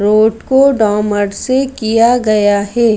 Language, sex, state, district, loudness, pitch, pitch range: Hindi, female, Madhya Pradesh, Bhopal, -12 LUFS, 220 Hz, 210-245 Hz